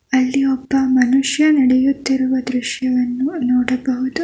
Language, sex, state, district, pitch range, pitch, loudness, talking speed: Kannada, female, Karnataka, Bangalore, 255-270 Hz, 260 Hz, -17 LUFS, 85 wpm